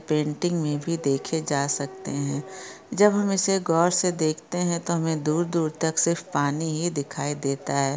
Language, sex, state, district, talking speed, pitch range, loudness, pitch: Hindi, female, Maharashtra, Pune, 190 wpm, 145-175 Hz, -25 LUFS, 160 Hz